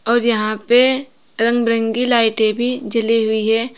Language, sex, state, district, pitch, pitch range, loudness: Hindi, female, Uttar Pradesh, Saharanpur, 230 Hz, 225-245 Hz, -16 LUFS